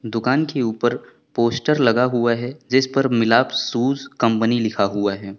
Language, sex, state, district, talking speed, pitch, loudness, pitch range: Hindi, male, Uttar Pradesh, Lucknow, 165 wpm, 120 Hz, -19 LUFS, 115-130 Hz